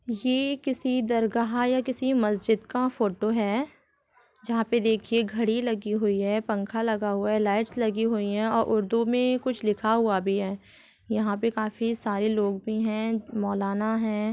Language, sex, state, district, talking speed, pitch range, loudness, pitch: Hindi, female, Bihar, Supaul, 170 wpm, 210-230 Hz, -26 LUFS, 220 Hz